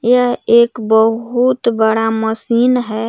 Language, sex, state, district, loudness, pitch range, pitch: Hindi, female, Jharkhand, Garhwa, -14 LUFS, 220-245 Hz, 235 Hz